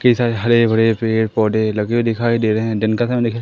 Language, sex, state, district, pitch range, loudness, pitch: Hindi, female, Madhya Pradesh, Umaria, 110-120 Hz, -17 LUFS, 115 Hz